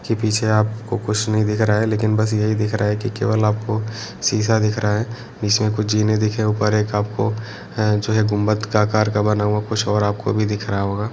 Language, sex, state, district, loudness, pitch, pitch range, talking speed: Hindi, male, Jharkhand, Sahebganj, -19 LUFS, 105 Hz, 105-110 Hz, 240 wpm